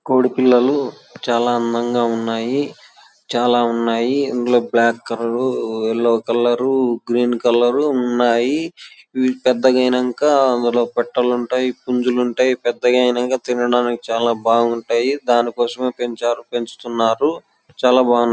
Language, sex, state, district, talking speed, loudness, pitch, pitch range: Telugu, male, Andhra Pradesh, Chittoor, 100 wpm, -17 LUFS, 120 Hz, 120-125 Hz